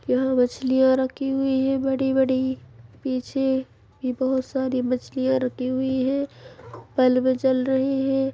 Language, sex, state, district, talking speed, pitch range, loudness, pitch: Hindi, female, Chhattisgarh, Bilaspur, 130 wpm, 255-265 Hz, -23 LUFS, 260 Hz